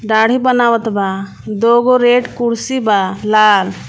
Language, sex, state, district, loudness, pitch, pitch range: Bhojpuri, female, Jharkhand, Palamu, -13 LUFS, 225 Hz, 210-240 Hz